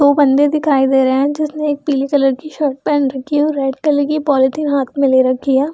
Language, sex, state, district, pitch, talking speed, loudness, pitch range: Hindi, female, Bihar, Gaya, 285 Hz, 260 wpm, -15 LUFS, 270-295 Hz